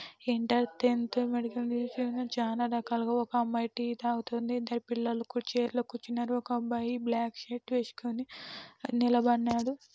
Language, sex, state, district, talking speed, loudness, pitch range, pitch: Telugu, female, Andhra Pradesh, Anantapur, 130 wpm, -32 LUFS, 235-245 Hz, 240 Hz